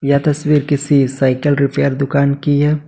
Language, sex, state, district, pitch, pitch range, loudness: Hindi, male, Jharkhand, Ranchi, 140 Hz, 140-145 Hz, -15 LUFS